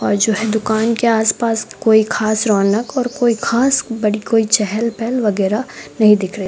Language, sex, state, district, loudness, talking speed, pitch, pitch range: Hindi, female, Rajasthan, Bikaner, -16 LUFS, 195 wpm, 220 Hz, 210-230 Hz